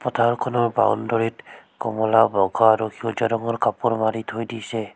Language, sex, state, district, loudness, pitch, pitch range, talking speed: Assamese, female, Assam, Sonitpur, -21 LUFS, 115 Hz, 110-115 Hz, 135 wpm